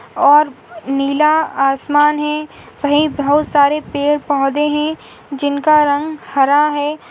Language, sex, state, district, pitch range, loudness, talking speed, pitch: Hindi, female, Goa, North and South Goa, 285-300 Hz, -15 LUFS, 110 wpm, 295 Hz